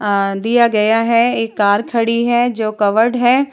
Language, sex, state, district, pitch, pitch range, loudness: Hindi, female, Bihar, Vaishali, 230 Hz, 210-240 Hz, -14 LUFS